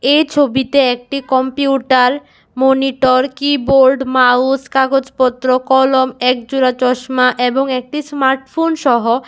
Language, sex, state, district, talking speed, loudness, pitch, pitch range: Bengali, female, Tripura, West Tripura, 105 wpm, -14 LUFS, 265 Hz, 255-275 Hz